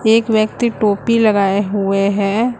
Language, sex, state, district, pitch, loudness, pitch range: Hindi, female, Uttar Pradesh, Lucknow, 215 Hz, -15 LUFS, 200-230 Hz